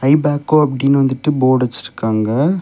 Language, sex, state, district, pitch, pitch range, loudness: Tamil, male, Tamil Nadu, Kanyakumari, 135 Hz, 130-145 Hz, -15 LUFS